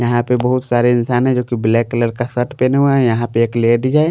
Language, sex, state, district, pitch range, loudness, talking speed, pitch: Hindi, male, Bihar, Patna, 120-125 Hz, -15 LUFS, 290 wpm, 120 Hz